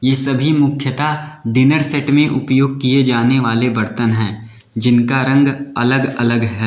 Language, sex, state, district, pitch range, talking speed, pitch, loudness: Hindi, male, Uttar Pradesh, Lalitpur, 120-140 Hz, 145 wpm, 130 Hz, -15 LUFS